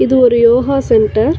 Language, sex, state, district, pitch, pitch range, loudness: Tamil, female, Tamil Nadu, Chennai, 240 Hz, 225-260 Hz, -11 LUFS